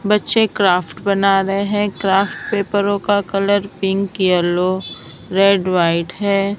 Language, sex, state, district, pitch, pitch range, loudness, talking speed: Hindi, female, Maharashtra, Mumbai Suburban, 195 Hz, 185-200 Hz, -17 LUFS, 130 wpm